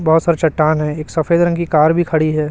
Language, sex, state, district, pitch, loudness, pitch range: Hindi, male, Chhattisgarh, Raipur, 160 Hz, -15 LUFS, 155-170 Hz